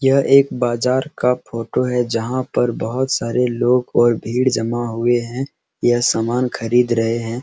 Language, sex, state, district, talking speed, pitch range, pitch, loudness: Hindi, male, Bihar, Araria, 170 wpm, 115-125 Hz, 120 Hz, -18 LUFS